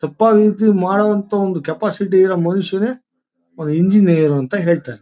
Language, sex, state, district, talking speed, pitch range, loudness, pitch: Kannada, male, Karnataka, Shimoga, 120 wpm, 170-210 Hz, -15 LUFS, 195 Hz